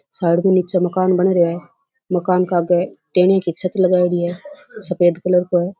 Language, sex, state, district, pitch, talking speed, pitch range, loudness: Rajasthani, female, Rajasthan, Churu, 180 Hz, 195 wpm, 175-185 Hz, -17 LUFS